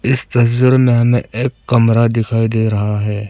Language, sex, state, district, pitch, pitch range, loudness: Hindi, male, Arunachal Pradesh, Papum Pare, 115 Hz, 110-125 Hz, -14 LUFS